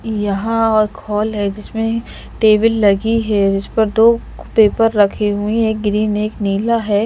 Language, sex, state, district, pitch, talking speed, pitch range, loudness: Hindi, female, Bihar, Patna, 215 Hz, 170 wpm, 205-225 Hz, -16 LUFS